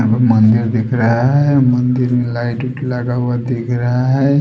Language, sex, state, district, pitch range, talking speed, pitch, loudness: Hindi, male, Odisha, Sambalpur, 120-125 Hz, 165 wpm, 125 Hz, -15 LUFS